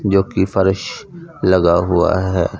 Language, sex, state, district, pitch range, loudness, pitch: Hindi, male, Punjab, Fazilka, 90-100 Hz, -16 LUFS, 95 Hz